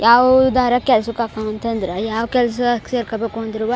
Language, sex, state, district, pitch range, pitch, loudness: Kannada, female, Karnataka, Chamarajanagar, 225-245 Hz, 230 Hz, -18 LUFS